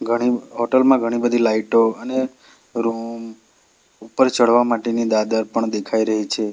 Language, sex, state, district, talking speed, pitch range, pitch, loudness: Gujarati, male, Gujarat, Valsad, 145 wpm, 110-120 Hz, 115 Hz, -19 LUFS